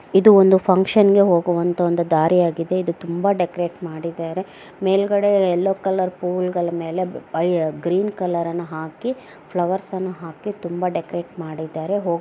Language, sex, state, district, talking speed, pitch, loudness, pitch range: Kannada, female, Karnataka, Mysore, 135 wpm, 180 Hz, -20 LUFS, 170-190 Hz